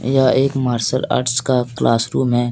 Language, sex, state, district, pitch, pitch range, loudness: Hindi, male, Jharkhand, Deoghar, 125 Hz, 120-130 Hz, -17 LUFS